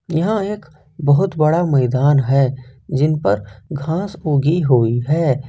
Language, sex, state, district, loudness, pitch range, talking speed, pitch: Hindi, male, Jharkhand, Ranchi, -17 LUFS, 130-165 Hz, 130 wpm, 145 Hz